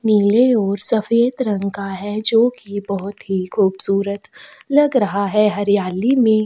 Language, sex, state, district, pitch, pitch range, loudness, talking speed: Hindi, female, Chhattisgarh, Kabirdham, 205 Hz, 200-230 Hz, -17 LUFS, 160 wpm